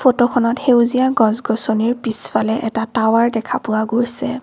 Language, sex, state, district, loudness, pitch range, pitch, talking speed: Assamese, female, Assam, Kamrup Metropolitan, -17 LUFS, 225-250 Hz, 235 Hz, 120 wpm